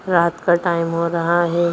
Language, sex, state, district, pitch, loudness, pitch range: Hindi, female, Bihar, Jahanabad, 170 Hz, -18 LUFS, 170-175 Hz